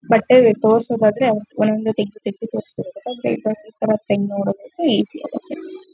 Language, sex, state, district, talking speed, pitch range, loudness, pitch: Kannada, female, Karnataka, Shimoga, 100 wpm, 215-280 Hz, -19 LUFS, 225 Hz